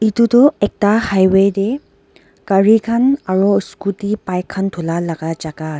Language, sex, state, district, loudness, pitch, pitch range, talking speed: Nagamese, female, Nagaland, Dimapur, -15 LUFS, 200 Hz, 180-220 Hz, 155 wpm